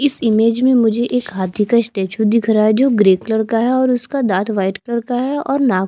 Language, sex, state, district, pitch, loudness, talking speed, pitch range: Hindi, female, Chhattisgarh, Jashpur, 230 Hz, -16 LUFS, 265 wpm, 215-250 Hz